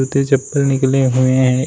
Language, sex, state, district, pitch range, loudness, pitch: Hindi, male, Uttar Pradesh, Shamli, 130-135 Hz, -15 LUFS, 130 Hz